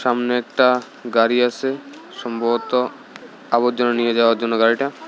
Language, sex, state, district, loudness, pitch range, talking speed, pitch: Bengali, male, Tripura, South Tripura, -19 LUFS, 115-125 Hz, 120 wpm, 120 Hz